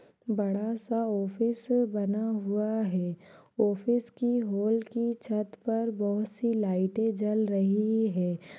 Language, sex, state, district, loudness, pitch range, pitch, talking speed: Hindi, female, Uttar Pradesh, Ghazipur, -29 LUFS, 200-230 Hz, 215 Hz, 125 wpm